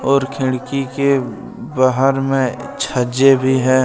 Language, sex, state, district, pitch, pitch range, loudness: Hindi, male, Jharkhand, Deoghar, 130 Hz, 130-135 Hz, -16 LUFS